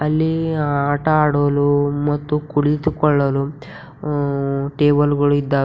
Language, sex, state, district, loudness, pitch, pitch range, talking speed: Kannada, female, Karnataka, Bidar, -18 LUFS, 145 Hz, 145-150 Hz, 95 wpm